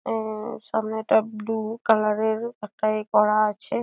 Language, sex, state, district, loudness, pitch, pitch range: Bengali, female, West Bengal, Dakshin Dinajpur, -24 LUFS, 220 Hz, 215-220 Hz